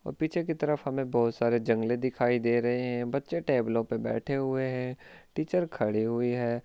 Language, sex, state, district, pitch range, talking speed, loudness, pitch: Hindi, male, Rajasthan, Churu, 120-140 Hz, 200 wpm, -29 LUFS, 120 Hz